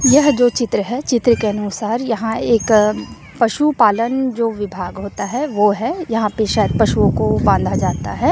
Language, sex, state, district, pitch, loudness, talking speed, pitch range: Hindi, female, Chhattisgarh, Raipur, 230 Hz, -17 LUFS, 180 wpm, 210-250 Hz